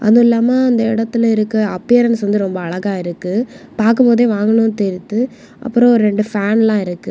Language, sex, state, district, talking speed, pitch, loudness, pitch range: Tamil, female, Tamil Nadu, Kanyakumari, 135 wpm, 225 Hz, -15 LUFS, 205-235 Hz